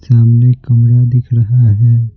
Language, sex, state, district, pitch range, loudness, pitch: Hindi, male, Bihar, Patna, 115-125 Hz, -10 LUFS, 120 Hz